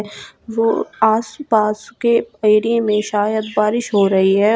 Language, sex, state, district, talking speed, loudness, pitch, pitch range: Hindi, female, Uttar Pradesh, Shamli, 130 wpm, -17 LUFS, 215 Hz, 210-225 Hz